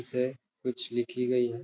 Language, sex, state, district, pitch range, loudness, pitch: Hindi, male, Bihar, Darbhanga, 120-125 Hz, -31 LUFS, 125 Hz